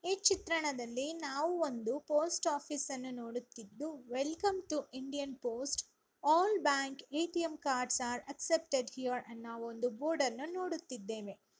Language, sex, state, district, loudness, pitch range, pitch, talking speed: Kannada, female, Karnataka, Raichur, -36 LUFS, 250-320 Hz, 280 Hz, 115 wpm